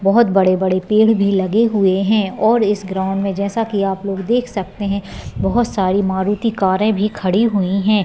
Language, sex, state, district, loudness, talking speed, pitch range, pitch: Hindi, female, Bihar, Madhepura, -17 LUFS, 185 wpm, 190-215 Hz, 200 Hz